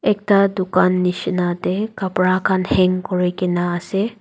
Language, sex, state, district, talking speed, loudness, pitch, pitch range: Nagamese, female, Nagaland, Dimapur, 130 wpm, -18 LUFS, 185 Hz, 180-195 Hz